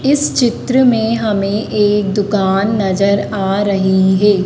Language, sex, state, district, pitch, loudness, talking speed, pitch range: Hindi, female, Madhya Pradesh, Dhar, 205 Hz, -14 LUFS, 135 wpm, 195-220 Hz